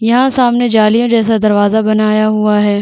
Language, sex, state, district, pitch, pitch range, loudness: Hindi, female, Chhattisgarh, Bastar, 215 Hz, 215-235 Hz, -11 LUFS